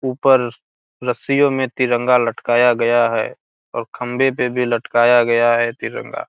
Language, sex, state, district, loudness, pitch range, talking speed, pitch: Hindi, male, Bihar, Gopalganj, -17 LUFS, 120-125 Hz, 145 wpm, 120 Hz